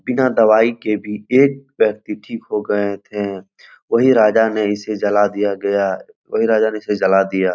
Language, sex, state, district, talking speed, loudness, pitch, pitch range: Hindi, male, Bihar, Jahanabad, 190 wpm, -17 LUFS, 105 Hz, 100-110 Hz